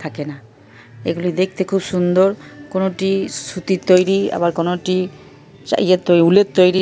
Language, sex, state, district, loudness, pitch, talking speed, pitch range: Bengali, female, West Bengal, Purulia, -17 LUFS, 185 Hz, 140 wpm, 170-190 Hz